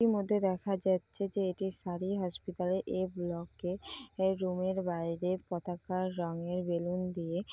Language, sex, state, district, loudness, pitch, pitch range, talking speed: Bengali, female, West Bengal, Jalpaiguri, -35 LUFS, 185 Hz, 175-190 Hz, 145 wpm